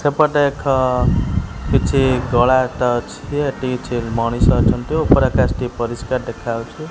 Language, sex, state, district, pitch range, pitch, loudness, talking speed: Odia, male, Odisha, Khordha, 120-135 Hz, 125 Hz, -18 LUFS, 115 wpm